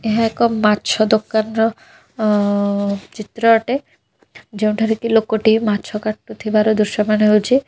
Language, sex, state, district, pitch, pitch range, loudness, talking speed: Odia, female, Odisha, Khordha, 215 Hz, 210-225 Hz, -17 LUFS, 110 wpm